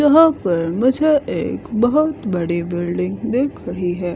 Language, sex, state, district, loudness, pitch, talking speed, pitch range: Hindi, female, Himachal Pradesh, Shimla, -18 LUFS, 215 Hz, 145 wpm, 175-290 Hz